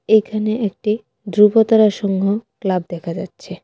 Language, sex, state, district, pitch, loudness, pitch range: Bengali, female, Tripura, West Tripura, 210 Hz, -17 LUFS, 195-220 Hz